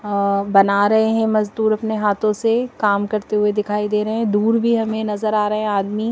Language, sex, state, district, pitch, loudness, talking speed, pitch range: Hindi, female, Madhya Pradesh, Bhopal, 210 Hz, -18 LUFS, 225 wpm, 205-220 Hz